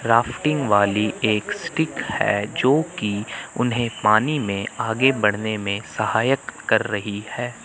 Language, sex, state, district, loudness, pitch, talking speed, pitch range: Hindi, male, Chandigarh, Chandigarh, -21 LUFS, 110 Hz, 135 wpm, 105-120 Hz